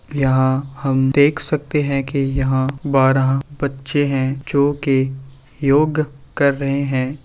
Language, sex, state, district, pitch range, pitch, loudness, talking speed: Hindi, male, Bihar, Begusarai, 135-145 Hz, 140 Hz, -18 LUFS, 125 wpm